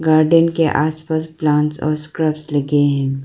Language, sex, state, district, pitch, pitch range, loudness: Hindi, female, Arunachal Pradesh, Lower Dibang Valley, 155 Hz, 150-160 Hz, -17 LUFS